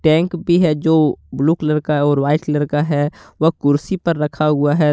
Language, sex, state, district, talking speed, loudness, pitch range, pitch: Hindi, male, Jharkhand, Deoghar, 220 wpm, -17 LUFS, 145-160 Hz, 150 Hz